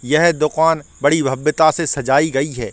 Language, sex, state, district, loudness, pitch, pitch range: Hindi, male, Chhattisgarh, Korba, -16 LUFS, 155 Hz, 140-160 Hz